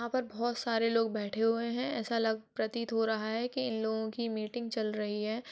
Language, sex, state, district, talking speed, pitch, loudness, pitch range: Hindi, female, Bihar, Gaya, 240 wpm, 225 Hz, -33 LUFS, 220-235 Hz